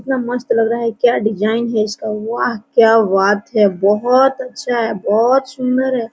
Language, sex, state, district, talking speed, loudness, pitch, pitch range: Hindi, female, Jharkhand, Sahebganj, 185 wpm, -15 LUFS, 230 Hz, 215-250 Hz